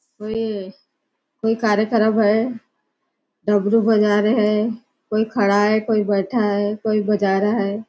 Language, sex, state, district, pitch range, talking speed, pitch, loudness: Hindi, female, Maharashtra, Nagpur, 205-225 Hz, 135 wpm, 215 Hz, -19 LUFS